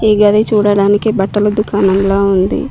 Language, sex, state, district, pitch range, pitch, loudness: Telugu, female, Telangana, Mahabubabad, 195-210 Hz, 205 Hz, -12 LUFS